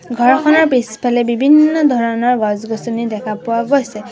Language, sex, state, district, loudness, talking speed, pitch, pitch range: Assamese, female, Assam, Sonitpur, -14 LUFS, 130 wpm, 240 Hz, 225-265 Hz